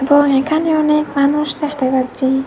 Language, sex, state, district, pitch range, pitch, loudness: Bengali, female, Assam, Hailakandi, 270-300 Hz, 285 Hz, -15 LUFS